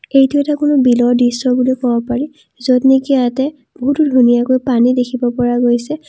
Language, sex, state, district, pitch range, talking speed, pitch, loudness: Assamese, female, Assam, Kamrup Metropolitan, 245-275 Hz, 165 wpm, 255 Hz, -14 LUFS